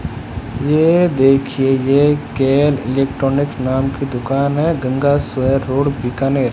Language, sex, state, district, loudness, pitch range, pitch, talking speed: Hindi, male, Rajasthan, Bikaner, -16 LUFS, 130-140 Hz, 135 Hz, 130 wpm